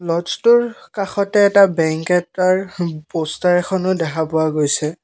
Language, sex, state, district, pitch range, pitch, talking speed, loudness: Assamese, male, Assam, Kamrup Metropolitan, 160-195 Hz, 180 Hz, 120 wpm, -17 LUFS